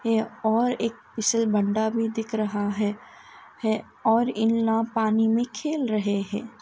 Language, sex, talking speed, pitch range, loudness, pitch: Hindi, female, 135 wpm, 215-230 Hz, -25 LUFS, 225 Hz